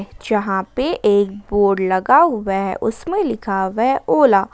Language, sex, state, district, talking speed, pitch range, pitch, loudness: Hindi, female, Jharkhand, Ranchi, 160 wpm, 195-230 Hz, 205 Hz, -17 LUFS